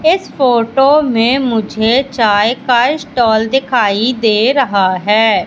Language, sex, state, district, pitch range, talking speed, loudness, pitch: Hindi, female, Madhya Pradesh, Katni, 220-270 Hz, 120 wpm, -12 LUFS, 240 Hz